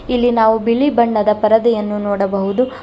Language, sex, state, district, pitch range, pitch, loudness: Kannada, female, Karnataka, Bangalore, 210-245 Hz, 220 Hz, -15 LUFS